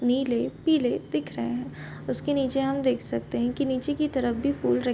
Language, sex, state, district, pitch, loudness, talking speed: Hindi, female, Bihar, Bhagalpur, 245 Hz, -27 LUFS, 205 wpm